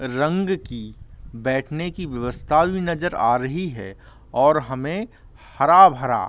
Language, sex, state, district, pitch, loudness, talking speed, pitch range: Hindi, male, Jharkhand, Sahebganj, 150 Hz, -20 LUFS, 135 wpm, 120-175 Hz